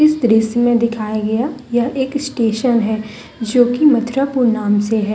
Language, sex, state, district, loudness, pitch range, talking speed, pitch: Hindi, female, Jharkhand, Deoghar, -16 LUFS, 220-260 Hz, 175 wpm, 240 Hz